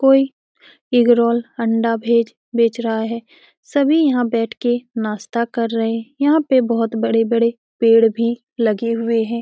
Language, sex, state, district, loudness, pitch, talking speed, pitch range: Hindi, female, Bihar, Saran, -18 LUFS, 235 Hz, 165 wpm, 230-240 Hz